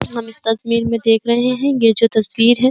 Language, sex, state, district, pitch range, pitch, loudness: Hindi, female, Uttar Pradesh, Jyotiba Phule Nagar, 225-235 Hz, 230 Hz, -16 LUFS